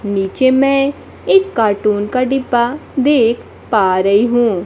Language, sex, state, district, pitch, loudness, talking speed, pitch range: Hindi, female, Bihar, Kaimur, 240 Hz, -14 LUFS, 130 wpm, 205-270 Hz